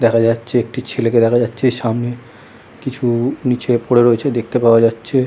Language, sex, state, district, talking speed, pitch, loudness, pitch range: Bengali, male, West Bengal, Kolkata, 180 wpm, 120 Hz, -16 LUFS, 115-125 Hz